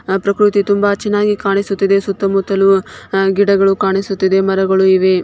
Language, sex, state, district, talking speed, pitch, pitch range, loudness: Kannada, female, Karnataka, Shimoga, 125 wpm, 195 Hz, 195-200 Hz, -14 LUFS